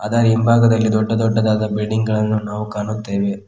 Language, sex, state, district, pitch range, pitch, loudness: Kannada, male, Karnataka, Koppal, 105-110 Hz, 110 Hz, -17 LUFS